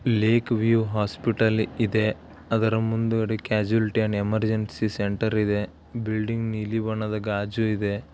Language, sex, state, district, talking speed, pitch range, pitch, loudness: Kannada, male, Karnataka, Belgaum, 120 wpm, 105-115 Hz, 110 Hz, -25 LUFS